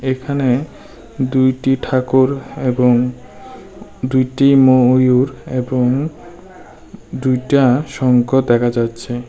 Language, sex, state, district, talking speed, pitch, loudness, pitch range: Bengali, male, Tripura, West Tripura, 70 wpm, 130 Hz, -15 LUFS, 125-135 Hz